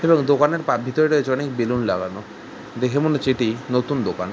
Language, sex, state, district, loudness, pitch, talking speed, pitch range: Bengali, male, West Bengal, Jhargram, -21 LUFS, 130 Hz, 180 wpm, 125-150 Hz